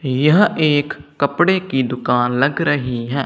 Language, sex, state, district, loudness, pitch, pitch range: Hindi, male, Punjab, Kapurthala, -17 LUFS, 140 Hz, 130-155 Hz